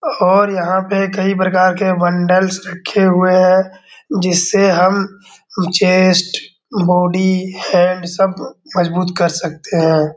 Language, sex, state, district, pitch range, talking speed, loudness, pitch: Hindi, male, Bihar, Darbhanga, 180-190 Hz, 120 wpm, -14 LUFS, 185 Hz